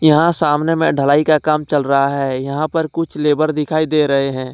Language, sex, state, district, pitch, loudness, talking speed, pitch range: Hindi, male, Jharkhand, Ranchi, 150 Hz, -16 LUFS, 225 wpm, 140-155 Hz